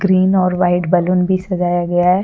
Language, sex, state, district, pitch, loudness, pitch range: Hindi, female, Jharkhand, Deoghar, 180 Hz, -15 LUFS, 175-185 Hz